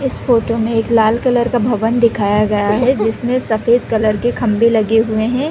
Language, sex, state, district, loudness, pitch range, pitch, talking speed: Hindi, female, Chhattisgarh, Raigarh, -14 LUFS, 220-240 Hz, 230 Hz, 185 wpm